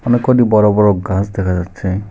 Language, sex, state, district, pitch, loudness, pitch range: Bengali, male, West Bengal, Alipurduar, 100 Hz, -14 LUFS, 95-110 Hz